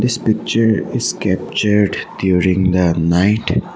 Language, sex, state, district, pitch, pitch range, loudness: English, male, Assam, Sonitpur, 100 Hz, 90-110 Hz, -16 LUFS